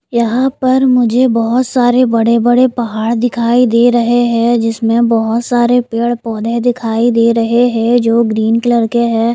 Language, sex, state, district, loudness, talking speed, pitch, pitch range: Hindi, female, Himachal Pradesh, Shimla, -12 LUFS, 155 wpm, 235 Hz, 230-245 Hz